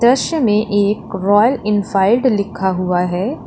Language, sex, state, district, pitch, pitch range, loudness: Hindi, female, Uttar Pradesh, Lalitpur, 205 Hz, 190-235 Hz, -16 LUFS